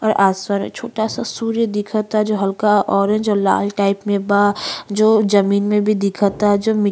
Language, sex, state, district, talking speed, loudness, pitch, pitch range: Bhojpuri, female, Uttar Pradesh, Ghazipur, 180 wpm, -17 LUFS, 205 Hz, 200-215 Hz